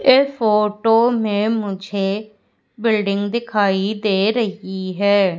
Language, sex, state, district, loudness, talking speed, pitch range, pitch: Hindi, female, Madhya Pradesh, Umaria, -18 LUFS, 100 wpm, 200-225 Hz, 210 Hz